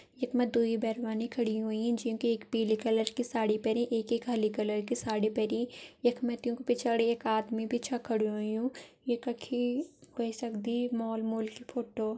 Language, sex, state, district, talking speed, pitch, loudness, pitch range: Garhwali, female, Uttarakhand, Tehri Garhwal, 190 wpm, 230 Hz, -32 LUFS, 220-240 Hz